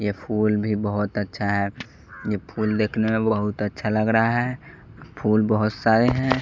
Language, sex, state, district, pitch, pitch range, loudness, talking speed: Hindi, male, Bihar, West Champaran, 110 Hz, 105-115 Hz, -23 LUFS, 175 wpm